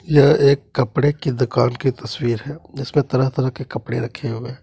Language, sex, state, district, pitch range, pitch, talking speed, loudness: Hindi, male, Jharkhand, Deoghar, 120-145 Hz, 130 Hz, 205 wpm, -19 LUFS